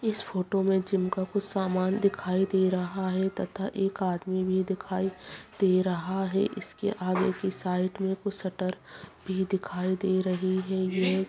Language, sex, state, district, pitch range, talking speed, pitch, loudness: Hindi, female, Bihar, Bhagalpur, 185-195 Hz, 170 wpm, 190 Hz, -29 LUFS